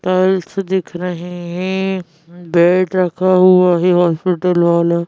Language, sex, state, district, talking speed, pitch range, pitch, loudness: Hindi, female, Madhya Pradesh, Bhopal, 120 wpm, 175-185 Hz, 180 Hz, -15 LUFS